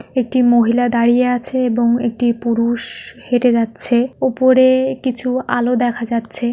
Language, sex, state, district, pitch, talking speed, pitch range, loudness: Bengali, male, West Bengal, North 24 Parganas, 245 Hz, 140 wpm, 235-255 Hz, -16 LUFS